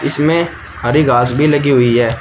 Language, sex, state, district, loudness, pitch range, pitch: Hindi, male, Uttar Pradesh, Shamli, -13 LUFS, 120-150 Hz, 135 Hz